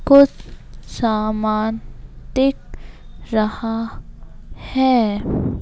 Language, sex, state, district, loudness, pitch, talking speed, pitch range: Hindi, male, Madhya Pradesh, Bhopal, -19 LUFS, 225 Hz, 55 wpm, 215-260 Hz